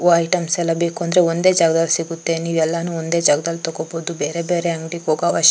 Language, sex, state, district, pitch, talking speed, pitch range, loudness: Kannada, female, Karnataka, Chamarajanagar, 165 Hz, 195 wpm, 165-170 Hz, -19 LUFS